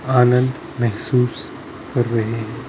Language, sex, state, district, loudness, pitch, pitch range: Hindi, male, Maharashtra, Mumbai Suburban, -19 LUFS, 125 Hz, 115-125 Hz